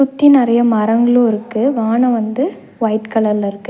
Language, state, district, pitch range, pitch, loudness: Tamil, Tamil Nadu, Nilgiris, 220-250 Hz, 230 Hz, -14 LUFS